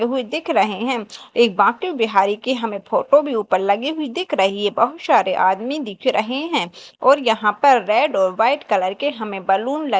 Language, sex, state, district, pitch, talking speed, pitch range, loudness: Hindi, female, Madhya Pradesh, Dhar, 230 Hz, 210 wpm, 200-280 Hz, -18 LUFS